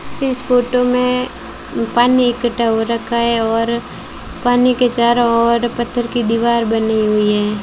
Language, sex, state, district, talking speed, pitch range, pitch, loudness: Hindi, female, Rajasthan, Bikaner, 150 wpm, 230-245 Hz, 235 Hz, -15 LUFS